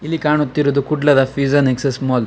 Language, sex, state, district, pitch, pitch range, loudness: Kannada, male, Karnataka, Dakshina Kannada, 140 Hz, 135-150 Hz, -16 LUFS